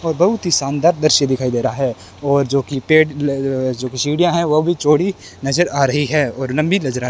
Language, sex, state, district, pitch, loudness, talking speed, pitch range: Hindi, male, Rajasthan, Bikaner, 140 Hz, -17 LUFS, 245 wpm, 130-160 Hz